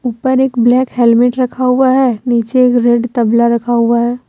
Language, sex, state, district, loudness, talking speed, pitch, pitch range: Hindi, female, Jharkhand, Deoghar, -12 LUFS, 195 wpm, 245 Hz, 235-255 Hz